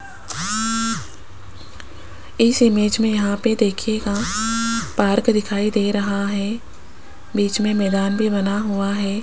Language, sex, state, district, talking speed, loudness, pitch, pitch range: Hindi, female, Rajasthan, Jaipur, 115 wpm, -20 LUFS, 205 Hz, 195-220 Hz